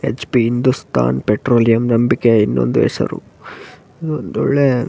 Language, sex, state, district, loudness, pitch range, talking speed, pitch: Kannada, male, Karnataka, Raichur, -16 LUFS, 110-130 Hz, 120 wpm, 120 Hz